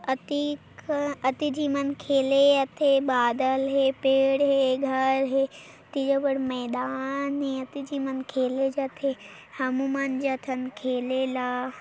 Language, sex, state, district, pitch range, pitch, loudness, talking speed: Hindi, female, Chhattisgarh, Korba, 260-280 Hz, 270 Hz, -26 LUFS, 120 wpm